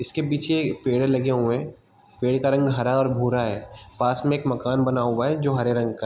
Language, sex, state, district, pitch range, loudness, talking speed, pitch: Hindi, male, Bihar, East Champaran, 120-135 Hz, -23 LUFS, 255 wpm, 125 Hz